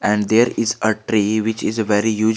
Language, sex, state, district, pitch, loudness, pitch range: English, male, Jharkhand, Garhwa, 110 Hz, -18 LUFS, 105-110 Hz